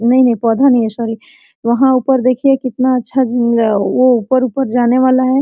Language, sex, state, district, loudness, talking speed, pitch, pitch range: Hindi, female, Jharkhand, Sahebganj, -13 LUFS, 210 wpm, 255 Hz, 235-260 Hz